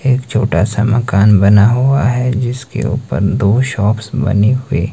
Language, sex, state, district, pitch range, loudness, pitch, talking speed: Hindi, male, Himachal Pradesh, Shimla, 105-130 Hz, -13 LUFS, 120 Hz, 160 wpm